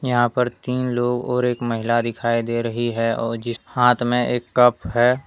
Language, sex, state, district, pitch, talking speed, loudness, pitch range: Hindi, male, Jharkhand, Deoghar, 120 Hz, 205 wpm, -21 LUFS, 115-125 Hz